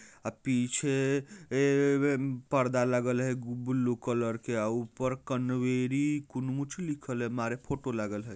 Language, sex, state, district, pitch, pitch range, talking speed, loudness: Bajjika, male, Bihar, Vaishali, 125 Hz, 120-140 Hz, 130 wpm, -31 LUFS